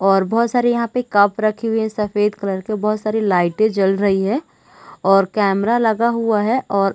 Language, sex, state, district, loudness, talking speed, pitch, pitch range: Hindi, female, Chhattisgarh, Raigarh, -18 LUFS, 205 wpm, 215 Hz, 195-230 Hz